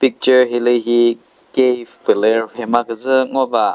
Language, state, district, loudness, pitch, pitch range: Chakhesang, Nagaland, Dimapur, -16 LUFS, 120 Hz, 115-130 Hz